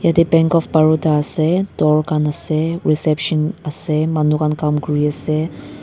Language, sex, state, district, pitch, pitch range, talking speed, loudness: Nagamese, female, Nagaland, Dimapur, 155 Hz, 150-160 Hz, 145 wpm, -17 LUFS